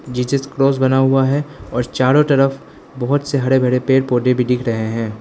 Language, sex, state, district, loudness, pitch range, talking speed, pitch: Hindi, male, Arunachal Pradesh, Lower Dibang Valley, -16 LUFS, 125-135 Hz, 205 wpm, 130 Hz